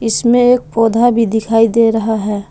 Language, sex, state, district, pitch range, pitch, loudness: Hindi, female, Jharkhand, Palamu, 220-235 Hz, 225 Hz, -12 LUFS